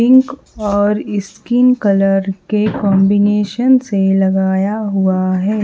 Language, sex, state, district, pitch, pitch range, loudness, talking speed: Hindi, female, Haryana, Charkhi Dadri, 205 Hz, 195-215 Hz, -14 LUFS, 105 wpm